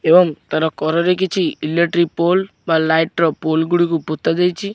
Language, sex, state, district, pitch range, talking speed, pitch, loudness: Odia, male, Odisha, Khordha, 160-180 Hz, 165 wpm, 170 Hz, -17 LUFS